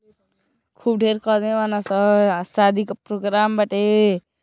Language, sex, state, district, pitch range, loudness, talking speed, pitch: Bhojpuri, male, Uttar Pradesh, Deoria, 200-215 Hz, -19 LUFS, 120 wpm, 210 Hz